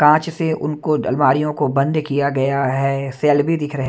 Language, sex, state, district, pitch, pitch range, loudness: Hindi, male, Punjab, Kapurthala, 145 Hz, 135-150 Hz, -18 LUFS